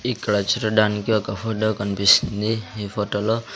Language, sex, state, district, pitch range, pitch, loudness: Telugu, male, Andhra Pradesh, Sri Satya Sai, 105-110 Hz, 105 Hz, -21 LUFS